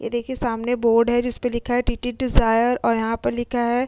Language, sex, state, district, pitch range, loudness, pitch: Hindi, female, Uttar Pradesh, Jyotiba Phule Nagar, 235-245 Hz, -21 LUFS, 240 Hz